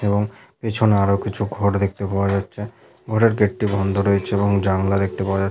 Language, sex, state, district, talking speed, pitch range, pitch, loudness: Bengali, male, West Bengal, Malda, 195 wpm, 100-105 Hz, 100 Hz, -20 LUFS